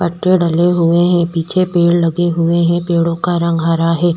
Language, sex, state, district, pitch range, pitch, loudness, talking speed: Hindi, female, Chhattisgarh, Kabirdham, 165-175 Hz, 170 Hz, -14 LUFS, 200 wpm